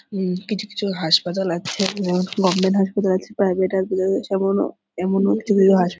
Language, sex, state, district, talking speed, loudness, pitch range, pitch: Bengali, female, West Bengal, Purulia, 170 wpm, -20 LUFS, 185-195 Hz, 190 Hz